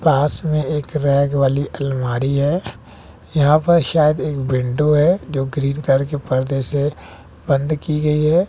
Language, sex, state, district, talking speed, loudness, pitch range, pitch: Hindi, male, Bihar, West Champaran, 165 wpm, -18 LUFS, 135-150 Hz, 145 Hz